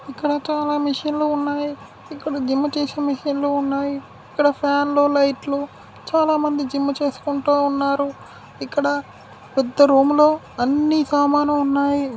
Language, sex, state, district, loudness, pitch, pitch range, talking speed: Telugu, female, Telangana, Karimnagar, -20 LUFS, 285 Hz, 280-295 Hz, 140 wpm